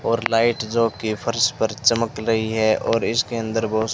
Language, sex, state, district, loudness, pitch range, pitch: Hindi, male, Rajasthan, Bikaner, -21 LUFS, 110-115 Hz, 115 Hz